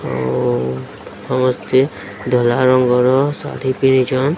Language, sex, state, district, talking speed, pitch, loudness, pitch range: Odia, male, Odisha, Sambalpur, 80 wpm, 130 Hz, -16 LUFS, 120-130 Hz